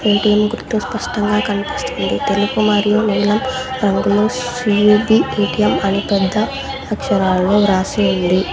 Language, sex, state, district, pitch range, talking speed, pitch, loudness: Telugu, female, Telangana, Mahabubabad, 200-215 Hz, 105 wpm, 210 Hz, -16 LUFS